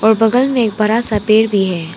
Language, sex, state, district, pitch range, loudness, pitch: Hindi, female, Arunachal Pradesh, Papum Pare, 205-225 Hz, -14 LUFS, 215 Hz